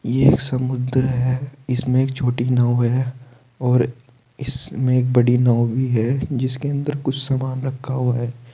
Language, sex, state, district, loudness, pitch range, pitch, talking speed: Hindi, male, Uttar Pradesh, Saharanpur, -20 LUFS, 125-130 Hz, 130 Hz, 160 wpm